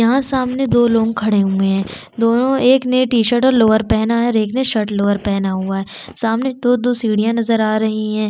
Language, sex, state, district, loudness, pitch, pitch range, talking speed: Hindi, female, Chhattisgarh, Sukma, -16 LUFS, 225 Hz, 215-245 Hz, 225 wpm